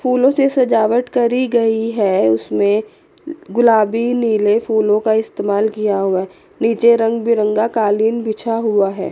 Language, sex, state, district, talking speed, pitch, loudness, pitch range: Hindi, female, Chandigarh, Chandigarh, 145 wpm, 225 Hz, -16 LUFS, 210-235 Hz